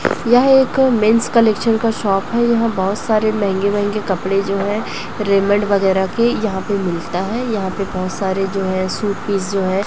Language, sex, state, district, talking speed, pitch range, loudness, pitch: Hindi, female, Chhattisgarh, Raipur, 200 wpm, 195-225 Hz, -17 LUFS, 200 Hz